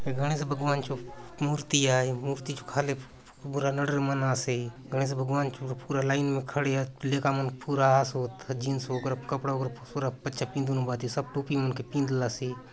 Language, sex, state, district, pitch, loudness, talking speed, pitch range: Halbi, male, Chhattisgarh, Bastar, 135 Hz, -29 LUFS, 180 wpm, 130-140 Hz